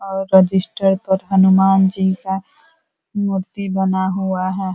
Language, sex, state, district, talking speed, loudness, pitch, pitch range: Hindi, female, Uttar Pradesh, Ghazipur, 125 wpm, -17 LUFS, 190 Hz, 190-195 Hz